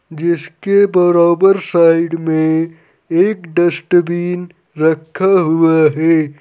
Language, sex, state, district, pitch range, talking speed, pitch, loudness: Hindi, male, Uttar Pradesh, Saharanpur, 160-180 Hz, 85 wpm, 170 Hz, -14 LUFS